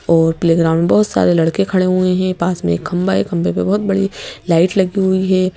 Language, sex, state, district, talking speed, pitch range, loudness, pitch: Hindi, female, Madhya Pradesh, Bhopal, 245 wpm, 160-185 Hz, -15 LUFS, 175 Hz